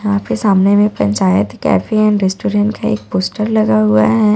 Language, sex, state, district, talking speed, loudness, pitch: Hindi, female, Bihar, Katihar, 190 wpm, -14 LUFS, 200 Hz